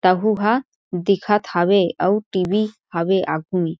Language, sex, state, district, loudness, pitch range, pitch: Chhattisgarhi, female, Chhattisgarh, Jashpur, -20 LUFS, 180-210 Hz, 190 Hz